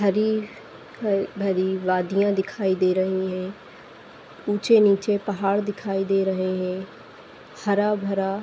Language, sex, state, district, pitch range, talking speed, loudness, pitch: Hindi, female, Uttar Pradesh, Hamirpur, 190-205 Hz, 120 wpm, -23 LUFS, 195 Hz